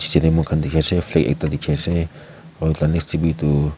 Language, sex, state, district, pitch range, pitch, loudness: Nagamese, male, Nagaland, Kohima, 75-85 Hz, 80 Hz, -19 LUFS